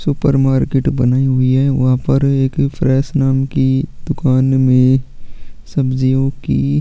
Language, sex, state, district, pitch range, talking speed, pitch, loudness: Hindi, male, Chhattisgarh, Sukma, 130-135 Hz, 130 wpm, 135 Hz, -15 LUFS